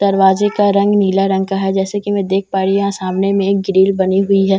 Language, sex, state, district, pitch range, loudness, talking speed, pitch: Hindi, female, Bihar, Katihar, 190-200 Hz, -14 LUFS, 300 wpm, 195 Hz